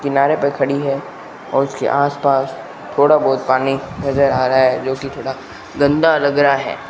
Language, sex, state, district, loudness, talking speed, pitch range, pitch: Hindi, male, Rajasthan, Bikaner, -16 LUFS, 180 wpm, 135-140 Hz, 140 Hz